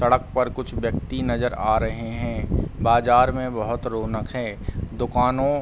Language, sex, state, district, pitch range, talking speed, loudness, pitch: Hindi, male, Uttar Pradesh, Deoria, 110-125 Hz, 160 wpm, -23 LUFS, 120 Hz